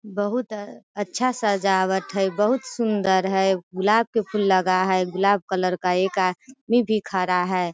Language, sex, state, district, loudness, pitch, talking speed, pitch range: Hindi, female, Bihar, Sitamarhi, -22 LUFS, 195 Hz, 160 wpm, 185-215 Hz